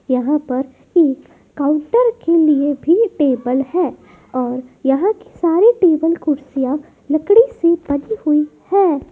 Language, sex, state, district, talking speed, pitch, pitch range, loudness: Hindi, female, Madhya Pradesh, Dhar, 130 wpm, 300 Hz, 275-355 Hz, -16 LUFS